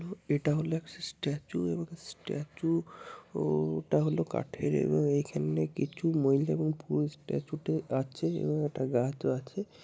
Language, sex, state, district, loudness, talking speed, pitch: Bengali, male, West Bengal, Purulia, -32 LUFS, 140 wpm, 145 Hz